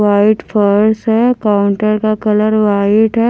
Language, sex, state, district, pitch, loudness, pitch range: Hindi, female, Himachal Pradesh, Shimla, 215 Hz, -12 LUFS, 205-220 Hz